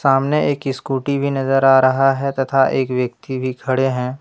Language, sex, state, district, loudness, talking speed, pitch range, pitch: Hindi, male, Jharkhand, Deoghar, -17 LUFS, 200 wpm, 130-135 Hz, 135 Hz